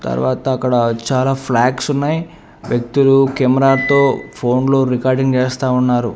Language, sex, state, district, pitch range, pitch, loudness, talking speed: Telugu, male, Andhra Pradesh, Annamaya, 125-135 Hz, 130 Hz, -15 LUFS, 95 wpm